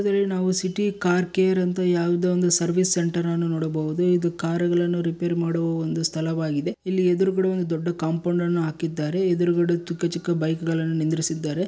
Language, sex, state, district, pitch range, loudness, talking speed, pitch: Kannada, male, Karnataka, Bellary, 165-180 Hz, -23 LUFS, 160 wpm, 175 Hz